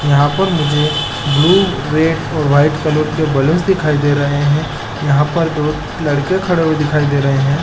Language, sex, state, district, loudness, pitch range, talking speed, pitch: Hindi, male, Chhattisgarh, Balrampur, -14 LUFS, 145-160 Hz, 195 wpm, 150 Hz